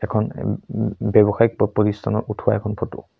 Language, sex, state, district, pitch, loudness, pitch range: Assamese, male, Assam, Sonitpur, 105 Hz, -21 LUFS, 105-110 Hz